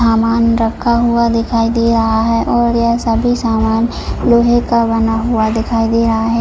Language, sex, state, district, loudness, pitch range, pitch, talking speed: Hindi, female, Jharkhand, Jamtara, -13 LUFS, 225-235 Hz, 230 Hz, 170 wpm